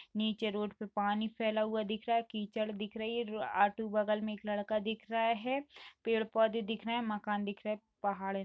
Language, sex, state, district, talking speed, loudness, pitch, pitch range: Hindi, female, Uttar Pradesh, Jalaun, 240 wpm, -35 LUFS, 215 Hz, 210-225 Hz